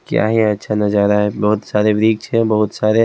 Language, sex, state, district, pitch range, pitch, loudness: Hindi, male, Delhi, New Delhi, 105-110 Hz, 105 Hz, -16 LUFS